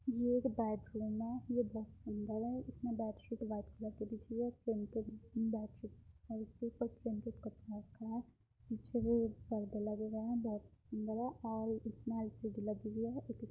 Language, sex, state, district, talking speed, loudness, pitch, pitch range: Hindi, female, Uttar Pradesh, Muzaffarnagar, 185 wpm, -42 LUFS, 225 Hz, 215-235 Hz